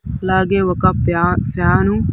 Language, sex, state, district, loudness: Telugu, male, Andhra Pradesh, Sri Satya Sai, -16 LUFS